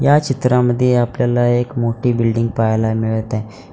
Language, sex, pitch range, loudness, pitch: Marathi, male, 110-125 Hz, -17 LUFS, 120 Hz